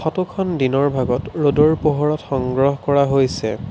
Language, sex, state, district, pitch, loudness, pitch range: Assamese, male, Assam, Sonitpur, 140 Hz, -18 LUFS, 130-150 Hz